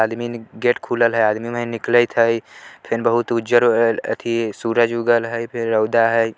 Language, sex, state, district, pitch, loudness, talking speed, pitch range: Bajjika, male, Bihar, Vaishali, 115 Hz, -19 LUFS, 170 wpm, 115-120 Hz